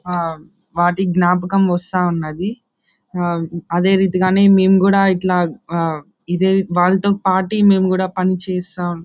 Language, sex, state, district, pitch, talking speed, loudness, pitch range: Telugu, male, Andhra Pradesh, Anantapur, 185 Hz, 125 wpm, -16 LUFS, 175-190 Hz